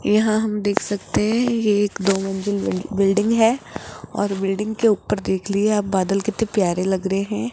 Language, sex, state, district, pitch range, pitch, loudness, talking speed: Hindi, female, Rajasthan, Jaipur, 195-215 Hz, 205 Hz, -20 LUFS, 200 wpm